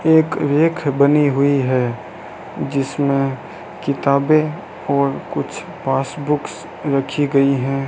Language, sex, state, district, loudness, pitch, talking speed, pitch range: Hindi, male, Rajasthan, Bikaner, -18 LUFS, 140 Hz, 100 wpm, 135-150 Hz